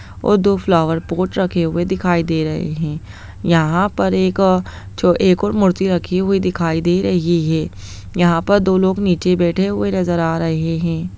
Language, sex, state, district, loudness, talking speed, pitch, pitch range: Hindi, female, Bihar, Muzaffarpur, -17 LUFS, 170 wpm, 175 Hz, 165-190 Hz